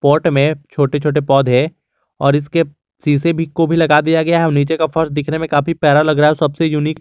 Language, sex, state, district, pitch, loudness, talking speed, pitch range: Hindi, male, Jharkhand, Garhwa, 150 Hz, -15 LUFS, 250 wpm, 145-160 Hz